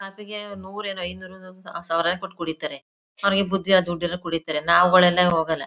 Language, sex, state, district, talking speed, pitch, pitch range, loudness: Kannada, female, Karnataka, Mysore, 150 wpm, 180 Hz, 170-195 Hz, -22 LUFS